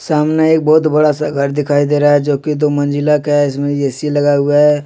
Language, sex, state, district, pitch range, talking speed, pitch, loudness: Hindi, male, Jharkhand, Deoghar, 145-150 Hz, 260 wpm, 145 Hz, -13 LUFS